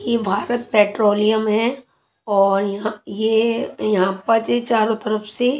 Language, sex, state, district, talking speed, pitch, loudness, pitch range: Hindi, female, Chhattisgarh, Raipur, 140 wpm, 215 Hz, -19 LUFS, 205-230 Hz